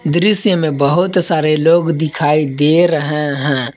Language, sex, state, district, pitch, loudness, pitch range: Hindi, male, Jharkhand, Palamu, 155 Hz, -14 LUFS, 150-170 Hz